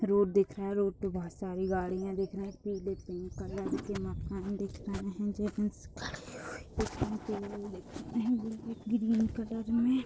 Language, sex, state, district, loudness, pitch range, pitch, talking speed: Hindi, female, Uttar Pradesh, Deoria, -35 LUFS, 195-220 Hz, 200 Hz, 160 wpm